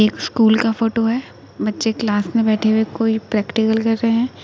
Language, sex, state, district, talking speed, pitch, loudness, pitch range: Hindi, female, Uttar Pradesh, Etah, 215 wpm, 225 Hz, -18 LUFS, 220-230 Hz